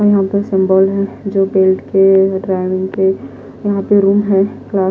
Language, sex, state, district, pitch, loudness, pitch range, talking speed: Hindi, female, Himachal Pradesh, Shimla, 195 Hz, -14 LUFS, 190-200 Hz, 145 wpm